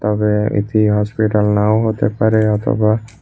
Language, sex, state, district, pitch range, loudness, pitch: Bengali, male, Tripura, West Tripura, 105-110 Hz, -15 LUFS, 105 Hz